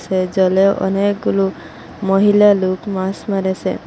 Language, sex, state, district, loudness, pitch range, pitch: Bengali, female, Assam, Hailakandi, -16 LUFS, 190-200 Hz, 195 Hz